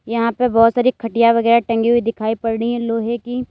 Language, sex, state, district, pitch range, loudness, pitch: Hindi, female, Uttar Pradesh, Lalitpur, 230-240 Hz, -17 LUFS, 230 Hz